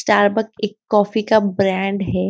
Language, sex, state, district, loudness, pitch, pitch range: Hindi, female, Maharashtra, Nagpur, -18 LUFS, 210 Hz, 195-215 Hz